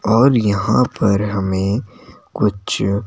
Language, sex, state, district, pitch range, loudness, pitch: Hindi, male, Himachal Pradesh, Shimla, 100-115 Hz, -17 LUFS, 105 Hz